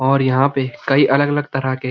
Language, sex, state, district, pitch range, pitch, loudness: Hindi, male, Uttarakhand, Uttarkashi, 130-140 Hz, 135 Hz, -17 LUFS